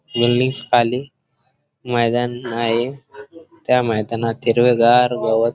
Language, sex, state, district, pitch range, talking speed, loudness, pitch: Marathi, male, Maharashtra, Pune, 115-130 Hz, 65 wpm, -18 LUFS, 120 Hz